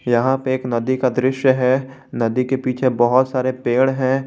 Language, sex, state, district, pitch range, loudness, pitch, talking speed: Hindi, male, Jharkhand, Garhwa, 125-130 Hz, -18 LUFS, 130 Hz, 195 wpm